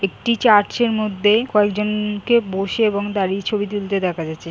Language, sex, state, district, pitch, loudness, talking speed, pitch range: Bengali, female, West Bengal, Jhargram, 205 Hz, -19 LUFS, 145 wpm, 195-215 Hz